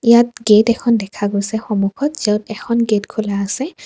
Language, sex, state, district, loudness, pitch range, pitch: Assamese, female, Assam, Kamrup Metropolitan, -17 LUFS, 205-235 Hz, 220 Hz